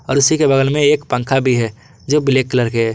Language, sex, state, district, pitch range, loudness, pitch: Hindi, male, Jharkhand, Garhwa, 125-145 Hz, -15 LUFS, 135 Hz